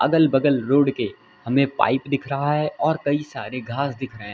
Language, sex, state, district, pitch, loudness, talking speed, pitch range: Hindi, male, Uttar Pradesh, Lalitpur, 140 Hz, -22 LUFS, 220 wpm, 130-145 Hz